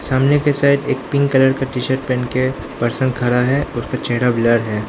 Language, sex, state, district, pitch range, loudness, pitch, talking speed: Hindi, male, Arunachal Pradesh, Lower Dibang Valley, 125-135 Hz, -17 LUFS, 130 Hz, 220 wpm